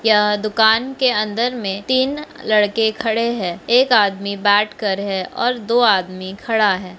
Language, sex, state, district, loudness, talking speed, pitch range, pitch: Hindi, female, Bihar, Madhepura, -17 LUFS, 165 wpm, 200-240 Hz, 215 Hz